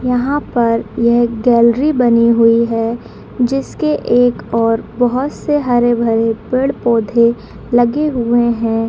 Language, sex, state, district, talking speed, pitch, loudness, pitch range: Hindi, female, Bihar, Madhepura, 115 wpm, 240 Hz, -14 LUFS, 230-250 Hz